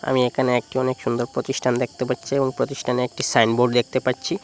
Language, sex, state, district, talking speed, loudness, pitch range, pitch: Bengali, male, Assam, Hailakandi, 190 wpm, -22 LUFS, 125-130 Hz, 125 Hz